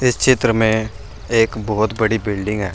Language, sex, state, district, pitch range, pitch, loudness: Hindi, male, Uttar Pradesh, Saharanpur, 105-115 Hz, 110 Hz, -17 LUFS